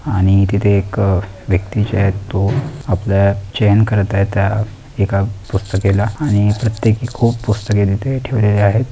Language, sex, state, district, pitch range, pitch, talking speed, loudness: Marathi, male, Maharashtra, Dhule, 100-110 Hz, 100 Hz, 140 wpm, -16 LUFS